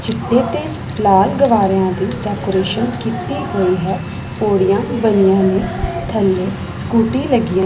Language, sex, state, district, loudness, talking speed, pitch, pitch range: Punjabi, female, Punjab, Pathankot, -16 LUFS, 125 wpm, 195 Hz, 190-220 Hz